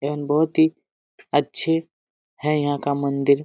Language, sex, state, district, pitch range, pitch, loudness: Hindi, male, Jharkhand, Jamtara, 140-160 Hz, 145 Hz, -22 LUFS